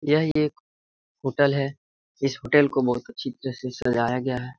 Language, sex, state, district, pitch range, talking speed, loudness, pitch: Hindi, male, Bihar, Jahanabad, 125-140 Hz, 185 wpm, -25 LUFS, 130 Hz